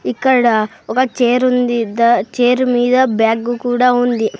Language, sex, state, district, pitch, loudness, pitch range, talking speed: Telugu, female, Andhra Pradesh, Sri Satya Sai, 245 Hz, -14 LUFS, 230-250 Hz, 135 wpm